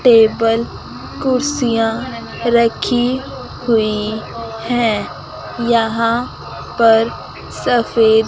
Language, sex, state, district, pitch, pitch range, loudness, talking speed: Hindi, female, Chandigarh, Chandigarh, 230 Hz, 225-240 Hz, -16 LUFS, 60 wpm